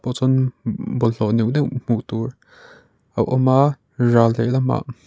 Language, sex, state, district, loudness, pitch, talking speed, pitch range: Mizo, male, Mizoram, Aizawl, -19 LUFS, 125 Hz, 155 wpm, 115-130 Hz